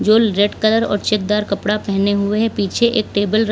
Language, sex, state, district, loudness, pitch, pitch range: Hindi, female, Uttar Pradesh, Lalitpur, -17 LUFS, 210 Hz, 205-220 Hz